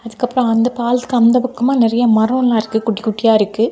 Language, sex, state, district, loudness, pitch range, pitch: Tamil, female, Tamil Nadu, Kanyakumari, -15 LUFS, 225-245 Hz, 235 Hz